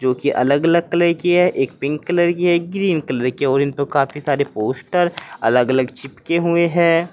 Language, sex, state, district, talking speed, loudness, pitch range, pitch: Hindi, male, Uttar Pradesh, Saharanpur, 225 wpm, -18 LUFS, 135-175 Hz, 150 Hz